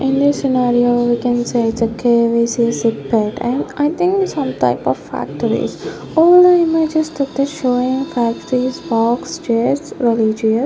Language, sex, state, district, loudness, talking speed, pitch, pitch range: English, female, Punjab, Fazilka, -16 LUFS, 145 wpm, 250 Hz, 235-290 Hz